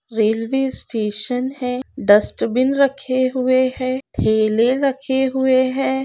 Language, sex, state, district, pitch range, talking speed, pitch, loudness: Hindi, female, Rajasthan, Nagaur, 235-265 Hz, 120 wpm, 255 Hz, -18 LUFS